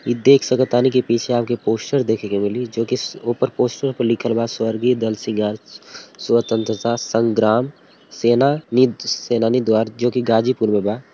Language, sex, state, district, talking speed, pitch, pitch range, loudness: Bhojpuri, male, Uttar Pradesh, Ghazipur, 165 wpm, 120 Hz, 110-125 Hz, -18 LUFS